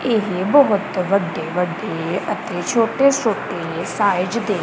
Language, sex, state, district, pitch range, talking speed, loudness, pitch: Punjabi, female, Punjab, Kapurthala, 180-230 Hz, 115 wpm, -19 LUFS, 200 Hz